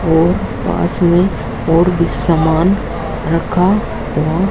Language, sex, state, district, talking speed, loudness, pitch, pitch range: Hindi, male, Haryana, Jhajjar, 105 wpm, -15 LUFS, 165 Hz, 160-180 Hz